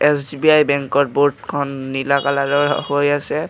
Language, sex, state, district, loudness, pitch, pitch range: Assamese, male, Assam, Kamrup Metropolitan, -17 LUFS, 145 Hz, 140-145 Hz